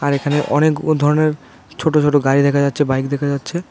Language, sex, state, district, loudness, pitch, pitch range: Bengali, male, Tripura, West Tripura, -16 LUFS, 145 Hz, 140-150 Hz